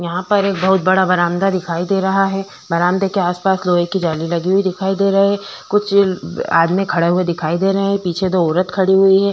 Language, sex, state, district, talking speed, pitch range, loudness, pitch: Hindi, female, Chhattisgarh, Korba, 225 wpm, 175-195 Hz, -16 LUFS, 190 Hz